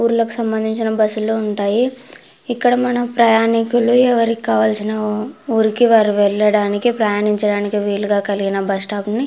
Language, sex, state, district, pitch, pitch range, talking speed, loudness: Telugu, female, Andhra Pradesh, Anantapur, 220 Hz, 210-235 Hz, 130 wpm, -16 LUFS